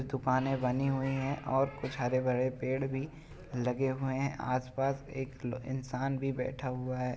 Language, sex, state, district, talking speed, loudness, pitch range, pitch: Hindi, male, Uttar Pradesh, Jalaun, 190 wpm, -34 LUFS, 130-135 Hz, 130 Hz